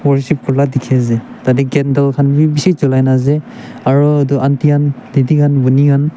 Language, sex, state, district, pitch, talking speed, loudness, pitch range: Nagamese, male, Nagaland, Dimapur, 140 Hz, 185 wpm, -13 LUFS, 135-145 Hz